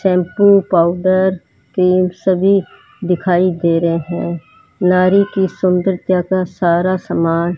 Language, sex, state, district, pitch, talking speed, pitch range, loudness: Hindi, male, Rajasthan, Bikaner, 180 Hz, 120 wpm, 170-190 Hz, -15 LUFS